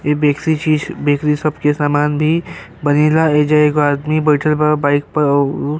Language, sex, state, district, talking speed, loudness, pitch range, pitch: Bhojpuri, male, Uttar Pradesh, Gorakhpur, 185 wpm, -15 LUFS, 145-155 Hz, 150 Hz